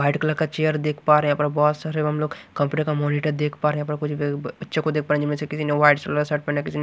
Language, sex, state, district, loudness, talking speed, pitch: Hindi, male, Maharashtra, Washim, -22 LUFS, 360 wpm, 150 Hz